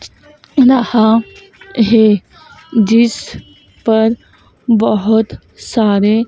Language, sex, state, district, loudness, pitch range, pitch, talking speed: Hindi, female, Madhya Pradesh, Dhar, -13 LUFS, 220-240 Hz, 225 Hz, 55 wpm